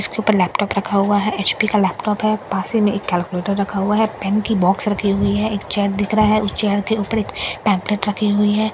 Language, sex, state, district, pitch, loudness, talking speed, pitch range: Hindi, female, Bihar, Katihar, 205 Hz, -18 LUFS, 255 wpm, 200-215 Hz